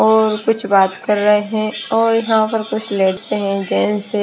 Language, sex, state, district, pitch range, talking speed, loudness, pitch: Hindi, female, Himachal Pradesh, Shimla, 200-220 Hz, 185 wpm, -16 LUFS, 215 Hz